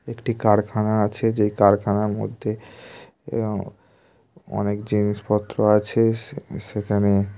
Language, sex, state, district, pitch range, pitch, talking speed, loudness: Bengali, male, West Bengal, Kolkata, 105-115 Hz, 105 Hz, 80 wpm, -22 LUFS